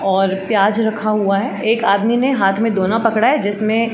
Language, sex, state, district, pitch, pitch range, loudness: Hindi, female, Uttar Pradesh, Jalaun, 215 Hz, 195-225 Hz, -16 LUFS